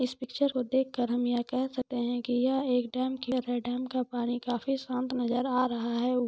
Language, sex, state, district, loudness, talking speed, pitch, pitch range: Hindi, female, Jharkhand, Jamtara, -30 LUFS, 230 wpm, 250 Hz, 245-255 Hz